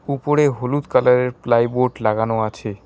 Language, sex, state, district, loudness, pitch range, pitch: Bengali, male, West Bengal, Alipurduar, -18 LUFS, 110-140 Hz, 125 Hz